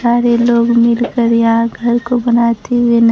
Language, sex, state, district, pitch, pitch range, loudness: Hindi, female, Bihar, Kaimur, 235 Hz, 235-240 Hz, -12 LUFS